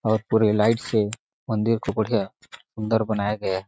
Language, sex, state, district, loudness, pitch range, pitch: Hindi, male, Chhattisgarh, Sarguja, -23 LUFS, 105-110 Hz, 110 Hz